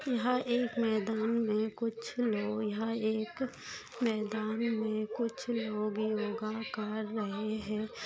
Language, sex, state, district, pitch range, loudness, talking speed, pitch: Hindi, female, Maharashtra, Dhule, 215-235 Hz, -34 LUFS, 120 wpm, 220 Hz